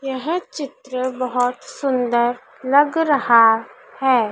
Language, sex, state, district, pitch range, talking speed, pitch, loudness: Hindi, female, Madhya Pradesh, Dhar, 245-280 Hz, 95 wpm, 255 Hz, -19 LUFS